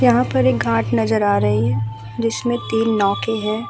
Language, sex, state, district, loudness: Hindi, female, Bihar, Vaishali, -19 LUFS